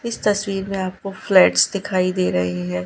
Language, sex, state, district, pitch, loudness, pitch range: Hindi, female, Gujarat, Gandhinagar, 190 Hz, -19 LUFS, 125-195 Hz